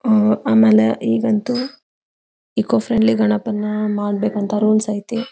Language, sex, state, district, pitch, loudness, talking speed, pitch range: Kannada, female, Karnataka, Belgaum, 215 Hz, -17 LUFS, 100 wpm, 205-220 Hz